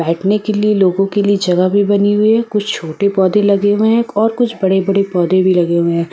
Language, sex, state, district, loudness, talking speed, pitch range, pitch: Hindi, female, Delhi, New Delhi, -13 LUFS, 245 wpm, 185-210 Hz, 200 Hz